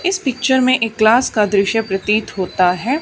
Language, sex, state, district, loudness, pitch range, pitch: Hindi, female, Haryana, Charkhi Dadri, -16 LUFS, 200-260 Hz, 225 Hz